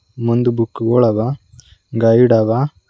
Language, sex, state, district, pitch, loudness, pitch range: Kannada, male, Karnataka, Bidar, 115 Hz, -15 LUFS, 115-120 Hz